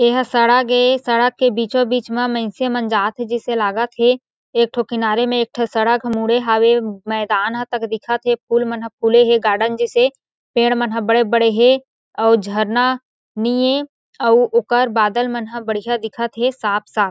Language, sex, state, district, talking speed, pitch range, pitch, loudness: Chhattisgarhi, female, Chhattisgarh, Jashpur, 185 wpm, 225-245 Hz, 235 Hz, -17 LUFS